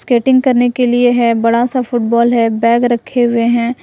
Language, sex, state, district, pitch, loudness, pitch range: Hindi, female, Jharkhand, Ranchi, 240 Hz, -12 LUFS, 235-245 Hz